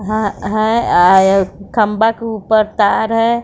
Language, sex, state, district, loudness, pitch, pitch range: Hindi, female, Bihar, West Champaran, -14 LUFS, 215 Hz, 200-225 Hz